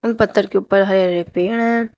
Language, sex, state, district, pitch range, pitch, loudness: Hindi, female, Uttar Pradesh, Shamli, 190-230 Hz, 200 Hz, -16 LUFS